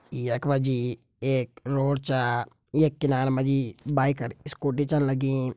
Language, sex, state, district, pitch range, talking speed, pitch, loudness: Garhwali, male, Uttarakhand, Tehri Garhwal, 125-140 Hz, 160 wpm, 135 Hz, -26 LUFS